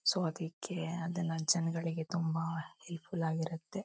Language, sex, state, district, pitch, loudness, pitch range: Kannada, female, Karnataka, Shimoga, 165 Hz, -36 LUFS, 165-170 Hz